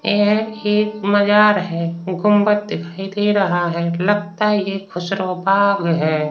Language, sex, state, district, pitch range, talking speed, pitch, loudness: Hindi, male, Uttar Pradesh, Varanasi, 175-210 Hz, 135 wpm, 200 Hz, -18 LUFS